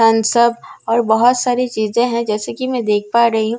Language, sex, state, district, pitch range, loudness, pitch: Hindi, female, Bihar, Katihar, 220-240 Hz, -16 LUFS, 235 Hz